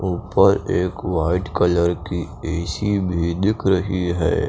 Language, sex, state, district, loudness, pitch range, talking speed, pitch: Hindi, male, Chandigarh, Chandigarh, -20 LUFS, 85-95 Hz, 135 wpm, 90 Hz